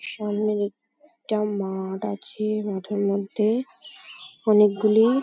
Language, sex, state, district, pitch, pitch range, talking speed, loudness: Bengali, female, West Bengal, Paschim Medinipur, 210 Hz, 200-220 Hz, 105 wpm, -24 LUFS